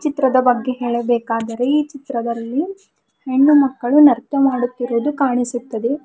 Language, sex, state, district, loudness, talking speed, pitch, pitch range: Kannada, female, Karnataka, Bidar, -17 LUFS, 100 wpm, 255 Hz, 240-280 Hz